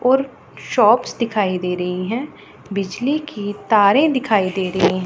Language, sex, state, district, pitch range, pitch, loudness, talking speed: Hindi, female, Punjab, Pathankot, 185-255 Hz, 205 Hz, -18 LUFS, 155 wpm